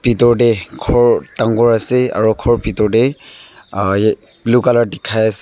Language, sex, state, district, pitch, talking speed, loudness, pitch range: Nagamese, male, Nagaland, Dimapur, 115 Hz, 155 wpm, -14 LUFS, 110-120 Hz